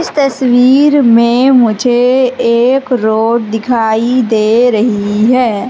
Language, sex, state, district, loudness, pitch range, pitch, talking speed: Hindi, female, Madhya Pradesh, Katni, -10 LUFS, 225-255 Hz, 240 Hz, 105 wpm